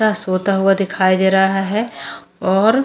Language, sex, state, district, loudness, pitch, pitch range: Hindi, female, Goa, North and South Goa, -16 LUFS, 195 Hz, 190-210 Hz